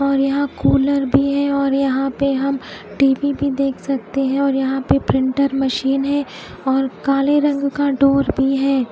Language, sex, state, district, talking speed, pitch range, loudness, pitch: Hindi, female, Odisha, Khordha, 180 wpm, 270-280 Hz, -18 LUFS, 275 Hz